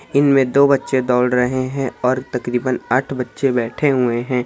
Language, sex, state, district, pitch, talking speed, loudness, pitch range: Hindi, male, Bihar, Saharsa, 130 Hz, 175 wpm, -18 LUFS, 125-135 Hz